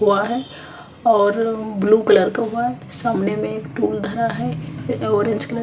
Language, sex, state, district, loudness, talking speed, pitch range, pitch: Hindi, female, Chhattisgarh, Kabirdham, -19 LUFS, 170 wpm, 210-235 Hz, 220 Hz